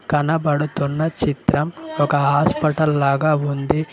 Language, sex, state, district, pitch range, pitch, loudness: Telugu, male, Telangana, Mahabubabad, 145-160 Hz, 150 Hz, -19 LUFS